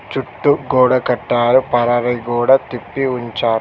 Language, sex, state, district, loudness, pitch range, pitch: Telugu, male, Telangana, Mahabubabad, -16 LUFS, 120-130 Hz, 125 Hz